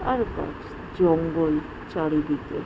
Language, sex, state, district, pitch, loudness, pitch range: Bengali, female, West Bengal, Jhargram, 160 Hz, -25 LUFS, 150-165 Hz